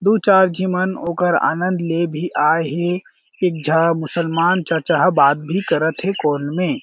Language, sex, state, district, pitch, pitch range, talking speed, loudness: Chhattisgarhi, male, Chhattisgarh, Jashpur, 170 Hz, 160-185 Hz, 185 wpm, -18 LUFS